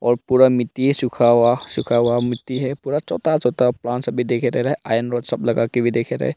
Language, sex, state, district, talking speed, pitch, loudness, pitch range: Hindi, male, Arunachal Pradesh, Longding, 235 wpm, 120 Hz, -19 LUFS, 120-130 Hz